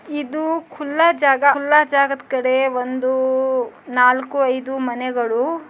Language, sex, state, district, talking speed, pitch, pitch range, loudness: Kannada, male, Karnataka, Dharwad, 105 wpm, 265 Hz, 255-295 Hz, -18 LUFS